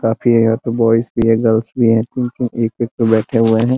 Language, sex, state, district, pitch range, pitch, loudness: Hindi, male, Bihar, Muzaffarpur, 115-120 Hz, 115 Hz, -15 LUFS